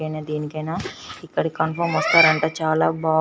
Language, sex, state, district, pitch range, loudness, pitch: Telugu, female, Telangana, Nalgonda, 155-160 Hz, -20 LUFS, 160 Hz